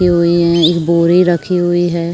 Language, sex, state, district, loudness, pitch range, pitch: Hindi, female, Uttar Pradesh, Jyotiba Phule Nagar, -12 LUFS, 170-175 Hz, 170 Hz